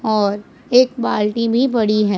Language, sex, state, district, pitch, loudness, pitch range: Hindi, male, Punjab, Pathankot, 220 Hz, -17 LUFS, 210-245 Hz